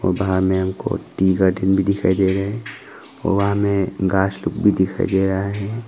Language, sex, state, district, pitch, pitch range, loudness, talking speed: Hindi, male, Arunachal Pradesh, Longding, 95 Hz, 95-100 Hz, -19 LUFS, 205 wpm